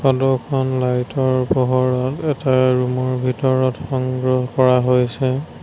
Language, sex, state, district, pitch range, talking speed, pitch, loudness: Assamese, male, Assam, Sonitpur, 125-130 Hz, 130 wpm, 130 Hz, -18 LUFS